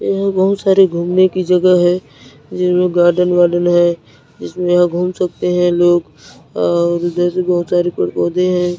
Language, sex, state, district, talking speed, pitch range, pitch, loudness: Hindi, male, Chhattisgarh, Narayanpur, 165 wpm, 175-180 Hz, 175 Hz, -14 LUFS